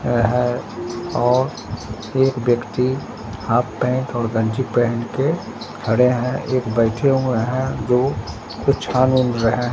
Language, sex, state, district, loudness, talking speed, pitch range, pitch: Hindi, male, Bihar, Katihar, -20 LUFS, 140 wpm, 115-130 Hz, 120 Hz